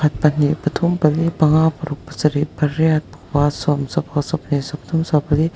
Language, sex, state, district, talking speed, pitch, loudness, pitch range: Mizo, male, Mizoram, Aizawl, 140 wpm, 150 Hz, -19 LUFS, 145-160 Hz